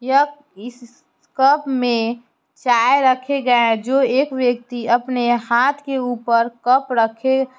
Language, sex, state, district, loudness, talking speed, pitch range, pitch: Hindi, male, Bihar, Muzaffarpur, -18 LUFS, 140 wpm, 235-265 Hz, 245 Hz